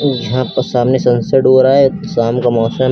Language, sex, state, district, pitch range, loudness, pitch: Hindi, male, Uttar Pradesh, Lucknow, 120-135 Hz, -13 LUFS, 130 Hz